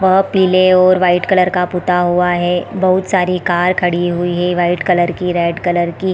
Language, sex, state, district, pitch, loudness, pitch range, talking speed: Hindi, female, Chhattisgarh, Bilaspur, 180 Hz, -14 LUFS, 175-185 Hz, 205 wpm